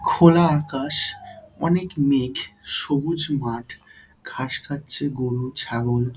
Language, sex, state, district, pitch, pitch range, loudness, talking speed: Bengali, male, West Bengal, Dakshin Dinajpur, 145 Hz, 130-170 Hz, -22 LUFS, 95 wpm